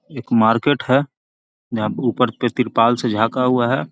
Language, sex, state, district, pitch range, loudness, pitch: Magahi, male, Bihar, Jahanabad, 115-125 Hz, -18 LUFS, 120 Hz